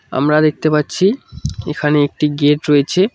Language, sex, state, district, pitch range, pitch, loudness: Bengali, male, West Bengal, Cooch Behar, 145-155 Hz, 150 Hz, -15 LUFS